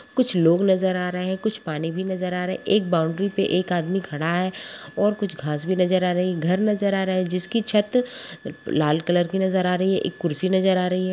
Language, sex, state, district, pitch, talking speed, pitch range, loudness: Hindi, female, Jharkhand, Sahebganj, 185 Hz, 260 wpm, 175-195 Hz, -23 LUFS